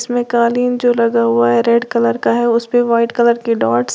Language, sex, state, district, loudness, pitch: Hindi, female, Uttar Pradesh, Lalitpur, -14 LUFS, 235 Hz